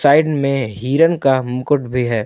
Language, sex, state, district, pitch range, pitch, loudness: Hindi, male, Jharkhand, Palamu, 125-145 Hz, 135 Hz, -16 LUFS